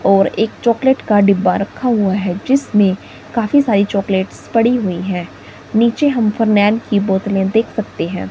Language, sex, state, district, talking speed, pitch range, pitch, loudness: Hindi, female, Himachal Pradesh, Shimla, 160 wpm, 195-230 Hz, 205 Hz, -15 LUFS